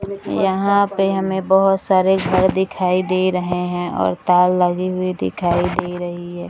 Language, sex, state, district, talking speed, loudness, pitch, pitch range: Hindi, female, Bihar, Gaya, 165 wpm, -18 LUFS, 185 Hz, 175-190 Hz